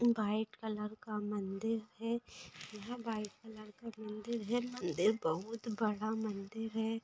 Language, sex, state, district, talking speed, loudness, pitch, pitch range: Hindi, female, Bihar, Saran, 145 wpm, -39 LUFS, 220 Hz, 210-230 Hz